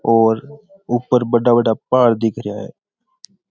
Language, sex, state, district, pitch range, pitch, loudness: Rajasthani, male, Rajasthan, Churu, 115-190 Hz, 120 Hz, -17 LUFS